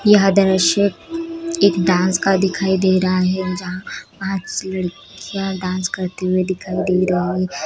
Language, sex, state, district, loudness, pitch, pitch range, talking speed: Hindi, female, Bihar, East Champaran, -18 LUFS, 185 Hz, 185-195 Hz, 150 wpm